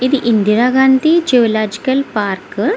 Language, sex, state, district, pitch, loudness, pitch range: Telugu, female, Andhra Pradesh, Visakhapatnam, 245 Hz, -13 LUFS, 215-265 Hz